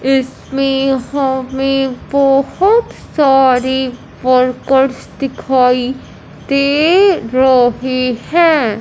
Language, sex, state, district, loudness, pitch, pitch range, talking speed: Hindi, male, Punjab, Fazilka, -13 LUFS, 265 Hz, 255-275 Hz, 60 wpm